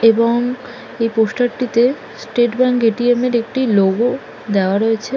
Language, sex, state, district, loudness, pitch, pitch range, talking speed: Bengali, female, West Bengal, Malda, -16 LUFS, 240 Hz, 225-250 Hz, 150 wpm